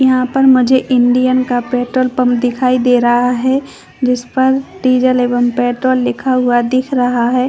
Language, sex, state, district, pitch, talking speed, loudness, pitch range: Hindi, female, Chhattisgarh, Bastar, 255 Hz, 160 wpm, -13 LUFS, 245-255 Hz